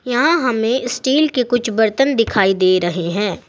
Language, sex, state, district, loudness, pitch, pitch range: Hindi, female, Uttar Pradesh, Saharanpur, -16 LUFS, 240 Hz, 200-255 Hz